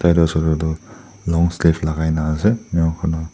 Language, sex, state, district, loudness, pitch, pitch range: Nagamese, male, Nagaland, Dimapur, -19 LUFS, 80 Hz, 80-85 Hz